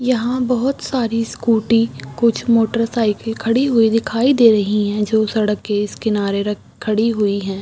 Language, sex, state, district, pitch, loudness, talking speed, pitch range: Hindi, female, Chhattisgarh, Rajnandgaon, 225 Hz, -17 LUFS, 175 wpm, 210-235 Hz